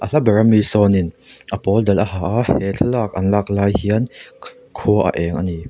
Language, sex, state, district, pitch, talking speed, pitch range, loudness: Mizo, male, Mizoram, Aizawl, 100 Hz, 210 wpm, 95-110 Hz, -17 LUFS